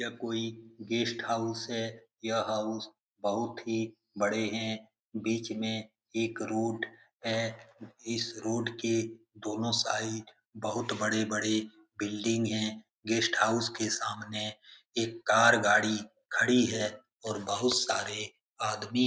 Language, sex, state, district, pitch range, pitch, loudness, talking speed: Hindi, male, Bihar, Lakhisarai, 110-115 Hz, 110 Hz, -31 LUFS, 125 wpm